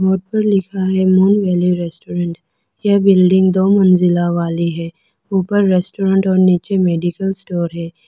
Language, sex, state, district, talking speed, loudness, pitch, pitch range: Hindi, female, Arunachal Pradesh, Lower Dibang Valley, 150 wpm, -15 LUFS, 185 Hz, 175-195 Hz